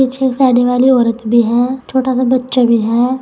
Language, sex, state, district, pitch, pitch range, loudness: Hindi, female, Uttar Pradesh, Saharanpur, 250 Hz, 235-260 Hz, -13 LUFS